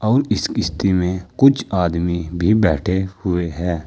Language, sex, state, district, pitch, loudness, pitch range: Hindi, male, Uttar Pradesh, Saharanpur, 90 Hz, -18 LUFS, 85-105 Hz